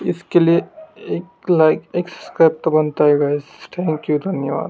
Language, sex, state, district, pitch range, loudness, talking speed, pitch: Hindi, male, Madhya Pradesh, Dhar, 150-175 Hz, -18 LUFS, 165 wpm, 165 Hz